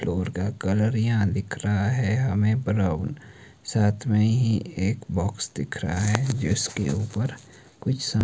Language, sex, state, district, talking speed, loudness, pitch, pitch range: Hindi, male, Himachal Pradesh, Shimla, 155 wpm, -25 LUFS, 110 Hz, 105-120 Hz